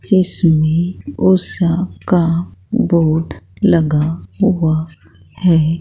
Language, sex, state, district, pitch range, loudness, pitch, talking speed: Hindi, female, Bihar, Katihar, 155-180 Hz, -15 LUFS, 165 Hz, 70 wpm